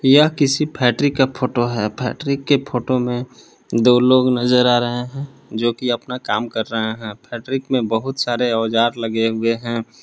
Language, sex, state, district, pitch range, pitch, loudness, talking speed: Hindi, male, Jharkhand, Palamu, 115-130 Hz, 125 Hz, -18 LUFS, 180 wpm